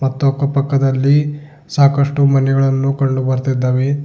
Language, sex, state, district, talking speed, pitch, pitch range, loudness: Kannada, male, Karnataka, Bidar, 90 wpm, 140 Hz, 135-140 Hz, -15 LUFS